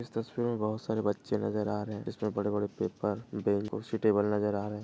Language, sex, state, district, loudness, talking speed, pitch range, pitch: Hindi, male, Maharashtra, Dhule, -32 LUFS, 260 wpm, 105-110 Hz, 105 Hz